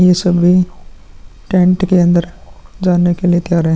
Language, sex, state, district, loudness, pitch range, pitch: Hindi, male, Uttar Pradesh, Muzaffarnagar, -13 LUFS, 175-180 Hz, 180 Hz